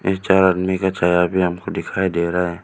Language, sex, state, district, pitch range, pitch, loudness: Hindi, male, Arunachal Pradesh, Lower Dibang Valley, 90-95 Hz, 95 Hz, -18 LUFS